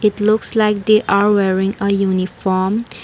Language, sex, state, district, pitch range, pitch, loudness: English, female, Assam, Kamrup Metropolitan, 190-215 Hz, 200 Hz, -16 LUFS